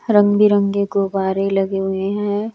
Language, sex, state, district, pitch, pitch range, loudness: Hindi, male, Chandigarh, Chandigarh, 200 Hz, 195-205 Hz, -17 LUFS